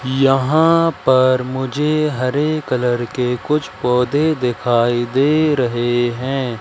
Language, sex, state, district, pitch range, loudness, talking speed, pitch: Hindi, male, Madhya Pradesh, Katni, 125-150 Hz, -17 LUFS, 110 wpm, 130 Hz